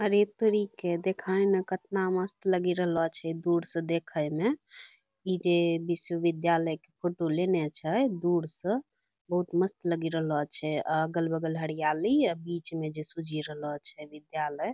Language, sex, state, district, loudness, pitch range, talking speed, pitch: Angika, female, Bihar, Bhagalpur, -30 LUFS, 160-185 Hz, 150 wpm, 170 Hz